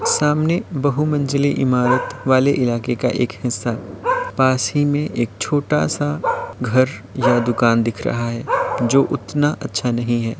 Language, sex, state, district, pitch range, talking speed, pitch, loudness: Hindi, male, Uttar Pradesh, Varanasi, 120-145 Hz, 155 wpm, 130 Hz, -19 LUFS